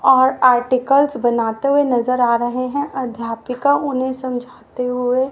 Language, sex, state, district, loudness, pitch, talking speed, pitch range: Hindi, female, Haryana, Rohtak, -18 LUFS, 255 Hz, 135 wpm, 245-265 Hz